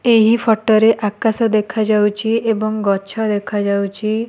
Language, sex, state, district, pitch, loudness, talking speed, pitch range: Odia, female, Odisha, Malkangiri, 215 Hz, -16 LUFS, 125 wpm, 210-225 Hz